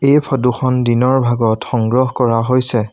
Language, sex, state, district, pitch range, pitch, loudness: Assamese, male, Assam, Sonitpur, 120-130 Hz, 125 Hz, -15 LUFS